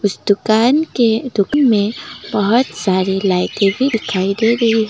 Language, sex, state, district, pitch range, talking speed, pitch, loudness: Hindi, female, Assam, Kamrup Metropolitan, 195-235 Hz, 145 wpm, 215 Hz, -15 LUFS